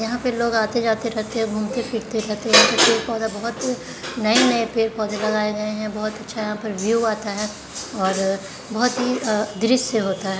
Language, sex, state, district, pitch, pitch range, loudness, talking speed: Hindi, female, Bihar, Jahanabad, 220 Hz, 215-230 Hz, -21 LUFS, 235 wpm